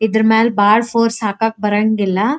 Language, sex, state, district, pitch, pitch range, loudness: Kannada, female, Karnataka, Dharwad, 220 Hz, 210-225 Hz, -15 LUFS